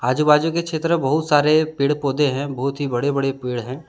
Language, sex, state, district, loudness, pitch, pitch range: Hindi, male, Jharkhand, Deoghar, -20 LUFS, 145 Hz, 135-155 Hz